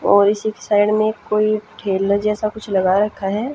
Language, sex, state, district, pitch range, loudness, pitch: Hindi, female, Haryana, Jhajjar, 200-215 Hz, -18 LUFS, 210 Hz